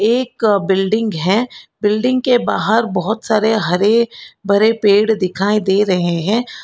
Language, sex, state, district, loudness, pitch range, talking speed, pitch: Hindi, female, Karnataka, Bangalore, -15 LUFS, 195-225 Hz, 135 wpm, 215 Hz